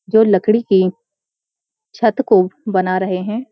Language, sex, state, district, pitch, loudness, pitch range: Hindi, female, Uttarakhand, Uttarkashi, 210 Hz, -16 LUFS, 185-230 Hz